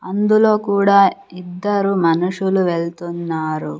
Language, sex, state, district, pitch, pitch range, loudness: Telugu, female, Andhra Pradesh, Sri Satya Sai, 185 Hz, 170-200 Hz, -17 LUFS